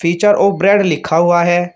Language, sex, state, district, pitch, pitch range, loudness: Hindi, male, Uttar Pradesh, Shamli, 175 Hz, 170-200 Hz, -12 LUFS